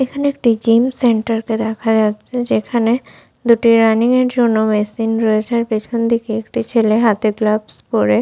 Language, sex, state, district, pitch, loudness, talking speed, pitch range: Bengali, female, West Bengal, Malda, 225 Hz, -16 LUFS, 130 wpm, 220-235 Hz